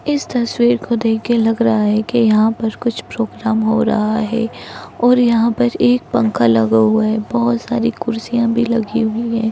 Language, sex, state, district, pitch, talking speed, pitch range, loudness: Hindi, female, Uttar Pradesh, Ghazipur, 230 Hz, 190 wpm, 220-235 Hz, -16 LUFS